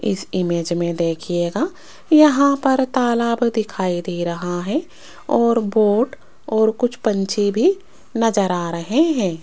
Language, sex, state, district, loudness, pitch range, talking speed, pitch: Hindi, female, Rajasthan, Jaipur, -19 LUFS, 180-260 Hz, 135 wpm, 220 Hz